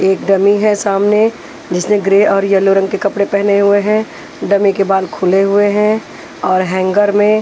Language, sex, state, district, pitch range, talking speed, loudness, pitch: Hindi, female, Punjab, Pathankot, 195-205 Hz, 195 wpm, -13 LUFS, 200 Hz